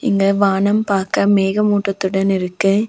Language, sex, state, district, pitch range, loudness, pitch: Tamil, female, Tamil Nadu, Nilgiris, 195-205 Hz, -16 LUFS, 195 Hz